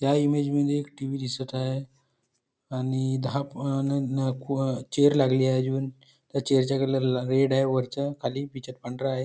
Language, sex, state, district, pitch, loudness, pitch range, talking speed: Marathi, male, Maharashtra, Nagpur, 135 Hz, -26 LUFS, 130-140 Hz, 160 wpm